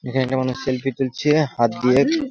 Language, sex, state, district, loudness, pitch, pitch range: Bengali, male, West Bengal, Jhargram, -20 LUFS, 130 Hz, 125-140 Hz